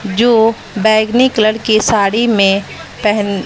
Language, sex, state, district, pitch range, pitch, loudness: Hindi, female, Bihar, West Champaran, 205-225 Hz, 215 Hz, -12 LUFS